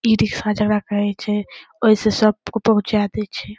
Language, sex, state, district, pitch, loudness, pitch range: Maithili, female, Bihar, Saharsa, 210 Hz, -19 LUFS, 205-220 Hz